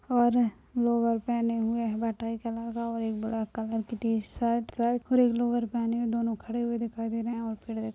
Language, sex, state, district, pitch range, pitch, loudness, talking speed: Hindi, female, Chhattisgarh, Bastar, 225-235 Hz, 230 Hz, -29 LUFS, 235 wpm